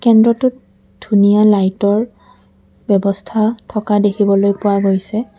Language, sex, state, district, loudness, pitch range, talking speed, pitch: Assamese, female, Assam, Kamrup Metropolitan, -14 LUFS, 200-220 Hz, 90 wpm, 205 Hz